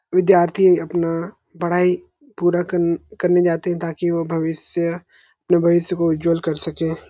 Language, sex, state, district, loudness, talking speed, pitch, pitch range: Hindi, male, Chhattisgarh, Sarguja, -19 LUFS, 150 wpm, 175 Hz, 165-180 Hz